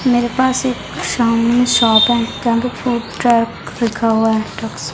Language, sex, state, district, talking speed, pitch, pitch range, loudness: Hindi, female, Chhattisgarh, Raipur, 95 wpm, 235 Hz, 230-245 Hz, -15 LUFS